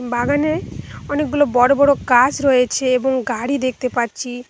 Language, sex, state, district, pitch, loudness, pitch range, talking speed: Bengali, female, West Bengal, Cooch Behar, 255 Hz, -17 LUFS, 245-285 Hz, 135 wpm